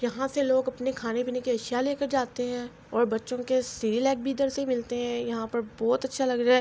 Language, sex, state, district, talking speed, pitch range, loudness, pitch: Urdu, female, Andhra Pradesh, Anantapur, 265 wpm, 240-265 Hz, -28 LUFS, 250 Hz